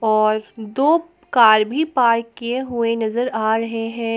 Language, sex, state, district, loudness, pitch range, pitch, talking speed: Hindi, female, Jharkhand, Palamu, -18 LUFS, 220-250 Hz, 230 Hz, 160 wpm